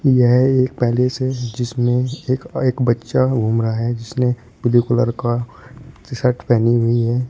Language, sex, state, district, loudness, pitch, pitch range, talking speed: Hindi, male, Uttar Pradesh, Shamli, -18 LUFS, 120 Hz, 120-125 Hz, 165 wpm